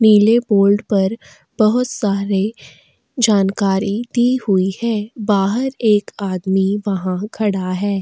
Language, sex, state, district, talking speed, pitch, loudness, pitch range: Hindi, female, Goa, North and South Goa, 110 wpm, 205 Hz, -17 LUFS, 195-225 Hz